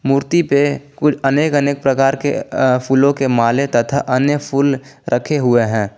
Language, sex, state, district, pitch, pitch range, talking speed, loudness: Hindi, male, Jharkhand, Garhwa, 140 Hz, 130-145 Hz, 160 wpm, -16 LUFS